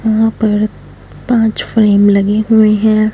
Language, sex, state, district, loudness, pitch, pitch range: Hindi, female, Punjab, Fazilka, -11 LUFS, 215 Hz, 210-220 Hz